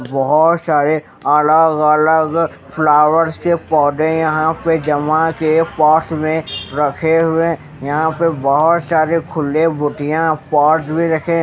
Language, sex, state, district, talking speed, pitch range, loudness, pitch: Hindi, male, Maharashtra, Mumbai Suburban, 115 wpm, 150-165 Hz, -15 LUFS, 155 Hz